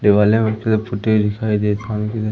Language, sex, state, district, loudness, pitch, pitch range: Hindi, male, Madhya Pradesh, Umaria, -18 LUFS, 110 Hz, 105-110 Hz